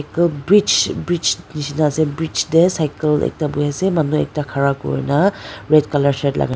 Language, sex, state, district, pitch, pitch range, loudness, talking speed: Nagamese, female, Nagaland, Dimapur, 150 Hz, 145-165 Hz, -17 LUFS, 185 wpm